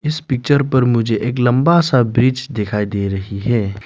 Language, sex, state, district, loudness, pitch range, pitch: Hindi, male, Arunachal Pradesh, Lower Dibang Valley, -16 LUFS, 105-130 Hz, 120 Hz